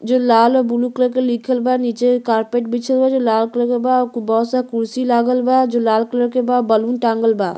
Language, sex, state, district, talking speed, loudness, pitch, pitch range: Bhojpuri, female, Uttar Pradesh, Gorakhpur, 230 wpm, -16 LUFS, 245 Hz, 230-250 Hz